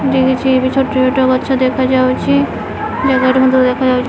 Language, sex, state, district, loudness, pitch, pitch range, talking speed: Odia, male, Odisha, Khordha, -13 LUFS, 260 Hz, 255-265 Hz, 90 wpm